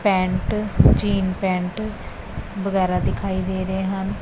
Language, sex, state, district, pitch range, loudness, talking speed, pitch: Punjabi, female, Punjab, Pathankot, 185-200 Hz, -22 LUFS, 115 wpm, 190 Hz